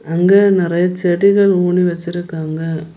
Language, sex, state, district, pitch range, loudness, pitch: Tamil, female, Tamil Nadu, Kanyakumari, 165-185 Hz, -14 LUFS, 175 Hz